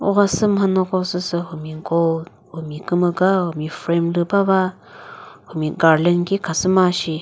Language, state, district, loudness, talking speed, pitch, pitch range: Chakhesang, Nagaland, Dimapur, -19 LUFS, 125 wpm, 175 Hz, 160-185 Hz